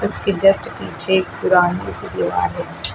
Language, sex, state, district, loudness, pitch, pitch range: Hindi, female, Uttar Pradesh, Lucknow, -18 LUFS, 190 Hz, 180-195 Hz